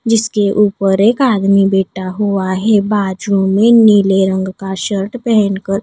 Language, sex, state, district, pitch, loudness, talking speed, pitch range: Hindi, female, Odisha, Nuapada, 200 Hz, -13 LUFS, 155 wpm, 195-210 Hz